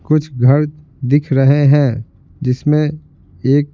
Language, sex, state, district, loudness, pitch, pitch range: Hindi, male, Bihar, Patna, -14 LUFS, 145 Hz, 130-150 Hz